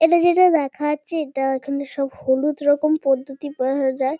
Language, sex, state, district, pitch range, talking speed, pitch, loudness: Bengali, female, West Bengal, Kolkata, 270-305 Hz, 170 wpm, 285 Hz, -20 LUFS